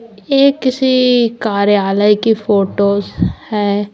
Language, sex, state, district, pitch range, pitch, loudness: Hindi, female, Uttar Pradesh, Lalitpur, 205-250 Hz, 210 Hz, -14 LUFS